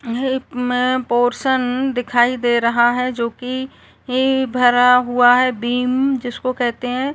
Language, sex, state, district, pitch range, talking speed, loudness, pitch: Hindi, female, Uttar Pradesh, Varanasi, 245-255 Hz, 145 wpm, -17 LUFS, 250 Hz